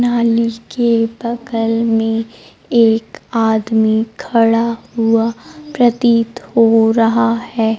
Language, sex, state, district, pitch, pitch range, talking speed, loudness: Hindi, female, Bihar, Kaimur, 230 Hz, 225-235 Hz, 90 wpm, -15 LUFS